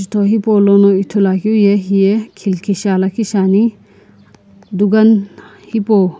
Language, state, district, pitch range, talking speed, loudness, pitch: Sumi, Nagaland, Kohima, 190-215 Hz, 95 wpm, -13 LUFS, 200 Hz